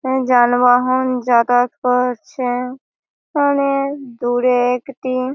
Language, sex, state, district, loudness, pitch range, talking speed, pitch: Bengali, female, West Bengal, Malda, -17 LUFS, 245-260 Hz, 80 wpm, 250 Hz